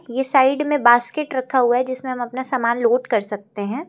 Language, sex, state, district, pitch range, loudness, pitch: Hindi, female, Uttar Pradesh, Lucknow, 235-265 Hz, -19 LUFS, 255 Hz